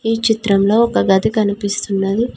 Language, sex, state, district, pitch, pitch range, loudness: Telugu, female, Telangana, Mahabubabad, 210 Hz, 200-225 Hz, -16 LUFS